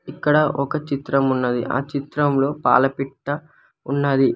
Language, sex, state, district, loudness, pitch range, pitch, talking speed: Telugu, male, Telangana, Hyderabad, -21 LUFS, 135-145 Hz, 140 Hz, 110 wpm